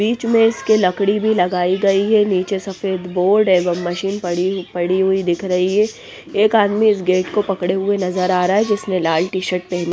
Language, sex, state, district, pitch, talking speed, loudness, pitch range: Hindi, female, Punjab, Pathankot, 190 Hz, 205 wpm, -17 LUFS, 180-205 Hz